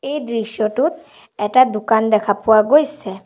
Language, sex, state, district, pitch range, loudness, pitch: Assamese, female, Assam, Sonitpur, 215-285 Hz, -16 LUFS, 225 Hz